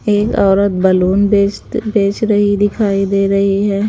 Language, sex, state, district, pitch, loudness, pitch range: Hindi, female, Haryana, Charkhi Dadri, 200 Hz, -13 LUFS, 195-205 Hz